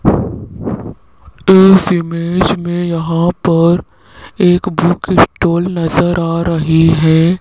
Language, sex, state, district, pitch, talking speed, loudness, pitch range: Hindi, male, Rajasthan, Jaipur, 170 Hz, 95 wpm, -12 LUFS, 160-175 Hz